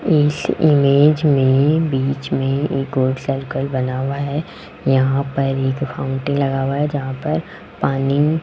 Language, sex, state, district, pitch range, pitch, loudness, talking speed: Hindi, male, Rajasthan, Jaipur, 135-145 Hz, 140 Hz, -18 LUFS, 155 wpm